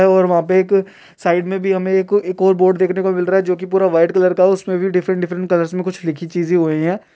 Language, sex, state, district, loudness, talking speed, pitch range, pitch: Hindi, male, Uttar Pradesh, Deoria, -16 LUFS, 260 wpm, 180-190 Hz, 185 Hz